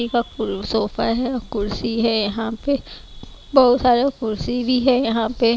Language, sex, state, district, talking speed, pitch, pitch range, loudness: Hindi, female, Bihar, West Champaran, 140 wpm, 230 Hz, 220-250 Hz, -20 LUFS